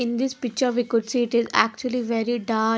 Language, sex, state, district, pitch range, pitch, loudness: English, female, Haryana, Jhajjar, 230-245 Hz, 240 Hz, -23 LUFS